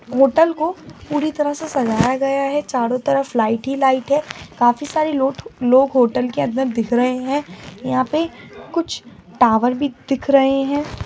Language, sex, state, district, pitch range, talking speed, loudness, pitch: Angika, female, Bihar, Madhepura, 250-290 Hz, 175 wpm, -18 LUFS, 270 Hz